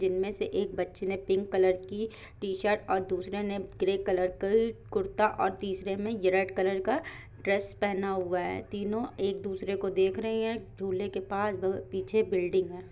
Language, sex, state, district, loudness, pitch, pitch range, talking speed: Hindi, female, Bihar, Jahanabad, -31 LUFS, 195 Hz, 190-205 Hz, 175 wpm